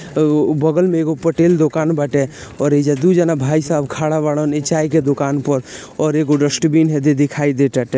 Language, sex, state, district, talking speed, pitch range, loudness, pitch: Bhojpuri, male, Bihar, Gopalganj, 225 wpm, 145-160 Hz, -16 LUFS, 150 Hz